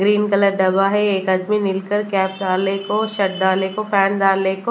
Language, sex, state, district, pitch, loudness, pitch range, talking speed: Hindi, female, Chandigarh, Chandigarh, 195 Hz, -18 LUFS, 190-205 Hz, 205 wpm